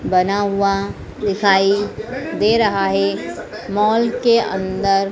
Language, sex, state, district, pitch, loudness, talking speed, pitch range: Hindi, female, Madhya Pradesh, Dhar, 200 Hz, -18 LUFS, 105 wpm, 195-210 Hz